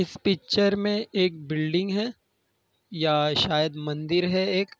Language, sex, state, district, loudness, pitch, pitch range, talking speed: Hindi, male, Bihar, Kishanganj, -25 LUFS, 175 Hz, 150-195 Hz, 140 wpm